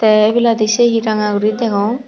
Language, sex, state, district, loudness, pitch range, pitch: Chakma, female, Tripura, Dhalai, -14 LUFS, 215-235 Hz, 220 Hz